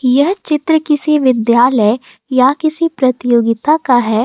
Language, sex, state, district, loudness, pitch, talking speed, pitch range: Hindi, female, Jharkhand, Ranchi, -13 LUFS, 260 Hz, 125 wpm, 240-305 Hz